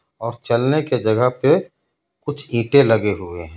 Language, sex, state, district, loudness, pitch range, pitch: Hindi, male, Jharkhand, Ranchi, -18 LUFS, 110-140 Hz, 115 Hz